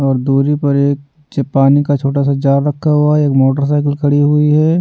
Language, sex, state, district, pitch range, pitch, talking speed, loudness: Hindi, male, Bihar, Patna, 140-150 Hz, 145 Hz, 210 wpm, -13 LUFS